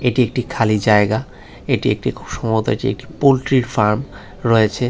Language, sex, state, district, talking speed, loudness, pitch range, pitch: Bengali, male, Tripura, West Tripura, 160 wpm, -18 LUFS, 105-130 Hz, 115 Hz